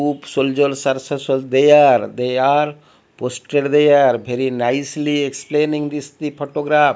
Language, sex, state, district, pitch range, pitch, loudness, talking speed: English, male, Odisha, Malkangiri, 130-150 Hz, 145 Hz, -17 LUFS, 110 wpm